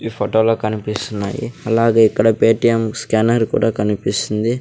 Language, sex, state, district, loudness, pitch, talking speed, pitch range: Telugu, male, Andhra Pradesh, Sri Satya Sai, -17 LUFS, 110 Hz, 115 wpm, 105-115 Hz